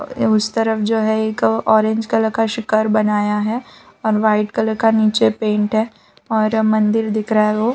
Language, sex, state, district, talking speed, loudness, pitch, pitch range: Hindi, female, Gujarat, Valsad, 195 wpm, -17 LUFS, 220 Hz, 215-220 Hz